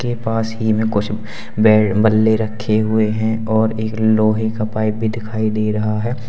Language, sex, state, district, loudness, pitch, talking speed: Hindi, male, Uttar Pradesh, Lalitpur, -17 LUFS, 110 Hz, 190 wpm